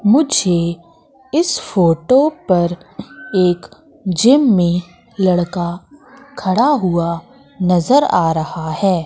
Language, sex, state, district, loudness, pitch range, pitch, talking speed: Hindi, female, Madhya Pradesh, Katni, -16 LUFS, 175-270 Hz, 185 Hz, 95 wpm